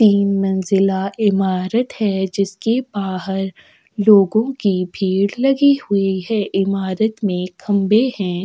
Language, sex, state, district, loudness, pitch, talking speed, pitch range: Hindi, female, Chhattisgarh, Sukma, -18 LUFS, 195 Hz, 120 wpm, 190-220 Hz